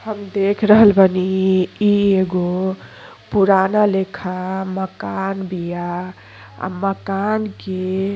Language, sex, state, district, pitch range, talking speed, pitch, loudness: Bhojpuri, female, Uttar Pradesh, Ghazipur, 185-200 Hz, 105 wpm, 190 Hz, -18 LUFS